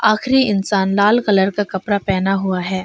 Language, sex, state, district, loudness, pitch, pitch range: Hindi, female, Arunachal Pradesh, Longding, -16 LUFS, 200 Hz, 190-210 Hz